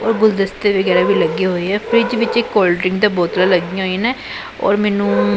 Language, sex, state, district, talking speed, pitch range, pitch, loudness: Punjabi, female, Punjab, Pathankot, 210 wpm, 185-215 Hz, 200 Hz, -16 LUFS